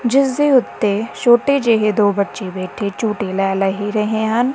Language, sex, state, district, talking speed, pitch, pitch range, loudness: Punjabi, female, Punjab, Kapurthala, 170 wpm, 215 Hz, 200-240 Hz, -17 LUFS